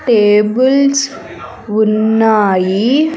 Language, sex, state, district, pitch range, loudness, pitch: Telugu, female, Andhra Pradesh, Sri Satya Sai, 210-270 Hz, -12 LUFS, 220 Hz